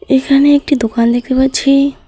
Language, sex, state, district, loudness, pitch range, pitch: Bengali, female, West Bengal, Alipurduar, -12 LUFS, 260-280 Hz, 270 Hz